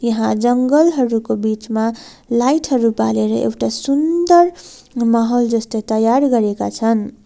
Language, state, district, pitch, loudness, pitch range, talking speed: Nepali, West Bengal, Darjeeling, 230 Hz, -16 LUFS, 220-255 Hz, 115 wpm